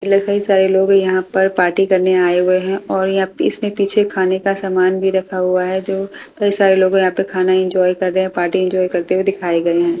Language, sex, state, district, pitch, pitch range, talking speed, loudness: Hindi, female, Delhi, New Delhi, 190 Hz, 185-195 Hz, 235 wpm, -15 LUFS